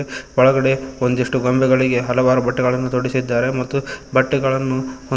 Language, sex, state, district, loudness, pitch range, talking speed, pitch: Kannada, male, Karnataka, Koppal, -18 LUFS, 125-130 Hz, 105 wpm, 130 Hz